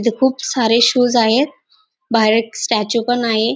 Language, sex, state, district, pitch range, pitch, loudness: Marathi, female, Maharashtra, Dhule, 225-255 Hz, 235 Hz, -15 LUFS